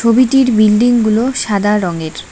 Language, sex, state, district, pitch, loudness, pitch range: Bengali, female, West Bengal, Cooch Behar, 220 Hz, -12 LUFS, 205-245 Hz